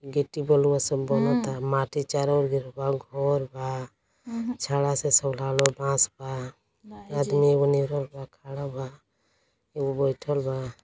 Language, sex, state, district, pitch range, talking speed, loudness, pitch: Bhojpuri, male, Uttar Pradesh, Deoria, 135-145 Hz, 135 wpm, -26 LUFS, 140 Hz